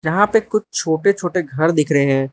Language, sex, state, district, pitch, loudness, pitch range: Hindi, male, Arunachal Pradesh, Lower Dibang Valley, 160 Hz, -17 LUFS, 150-200 Hz